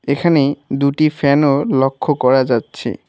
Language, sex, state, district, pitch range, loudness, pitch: Bengali, male, West Bengal, Alipurduar, 135-150 Hz, -15 LUFS, 140 Hz